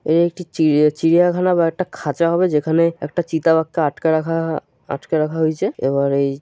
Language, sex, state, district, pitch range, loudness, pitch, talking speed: Bengali, male, West Bengal, Jalpaiguri, 150-170 Hz, -18 LUFS, 160 Hz, 170 wpm